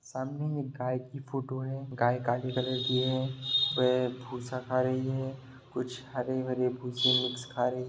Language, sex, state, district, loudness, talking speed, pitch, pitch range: Hindi, male, Bihar, Sitamarhi, -31 LUFS, 70 wpm, 130 Hz, 125-130 Hz